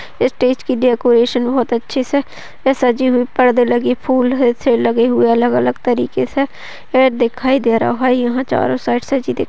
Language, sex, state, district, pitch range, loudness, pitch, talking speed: Hindi, female, Maharashtra, Sindhudurg, 235-260 Hz, -15 LUFS, 245 Hz, 190 wpm